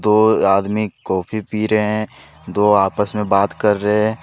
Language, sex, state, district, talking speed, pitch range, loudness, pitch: Hindi, male, Jharkhand, Deoghar, 170 wpm, 100-110 Hz, -17 LUFS, 105 Hz